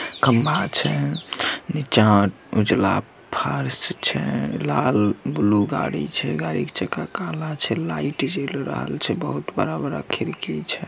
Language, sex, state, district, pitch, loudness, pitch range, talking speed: Maithili, male, Bihar, Samastipur, 105 Hz, -22 LUFS, 100-150 Hz, 125 wpm